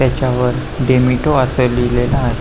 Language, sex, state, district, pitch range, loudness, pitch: Marathi, male, Maharashtra, Pune, 125-130 Hz, -15 LUFS, 125 Hz